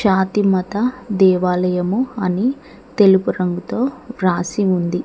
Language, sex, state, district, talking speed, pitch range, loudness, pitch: Telugu, female, Telangana, Mahabubabad, 95 wpm, 180-235 Hz, -18 LUFS, 190 Hz